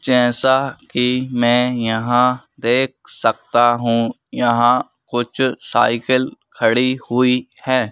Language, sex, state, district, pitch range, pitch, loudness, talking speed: Hindi, male, Madhya Pradesh, Bhopal, 120-130 Hz, 125 Hz, -17 LUFS, 100 wpm